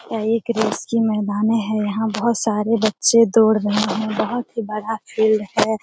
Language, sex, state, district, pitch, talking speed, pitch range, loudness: Hindi, female, Bihar, Jamui, 220 Hz, 185 wpm, 215-225 Hz, -19 LUFS